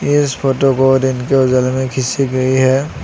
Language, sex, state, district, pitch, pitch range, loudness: Hindi, male, Assam, Sonitpur, 130 Hz, 130-135 Hz, -14 LUFS